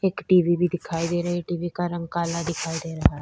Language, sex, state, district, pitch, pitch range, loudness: Hindi, female, Chhattisgarh, Sukma, 175 Hz, 170-175 Hz, -24 LUFS